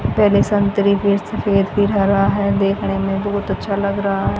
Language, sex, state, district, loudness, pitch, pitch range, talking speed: Hindi, female, Haryana, Jhajjar, -17 LUFS, 200 Hz, 195-205 Hz, 190 wpm